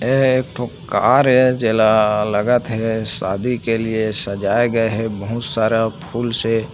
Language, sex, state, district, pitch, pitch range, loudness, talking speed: Hindi, male, Chhattisgarh, Bilaspur, 115 Hz, 110-120 Hz, -18 LUFS, 160 wpm